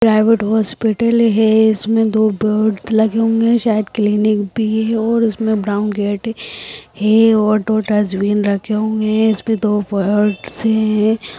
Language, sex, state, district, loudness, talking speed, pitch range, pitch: Hindi, female, Bihar, Samastipur, -15 LUFS, 140 wpm, 210-225 Hz, 220 Hz